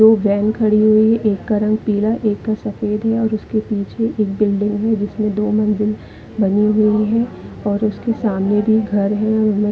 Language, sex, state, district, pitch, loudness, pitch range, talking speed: Hindi, female, Chhattisgarh, Bilaspur, 215 Hz, -17 LUFS, 210-220 Hz, 190 wpm